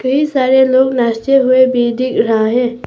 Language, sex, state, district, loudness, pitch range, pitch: Hindi, female, Arunachal Pradesh, Papum Pare, -12 LUFS, 240-260 Hz, 255 Hz